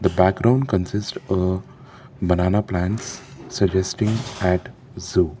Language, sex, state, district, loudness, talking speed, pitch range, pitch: English, male, Karnataka, Bangalore, -22 LUFS, 80 wpm, 90-120 Hz, 95 Hz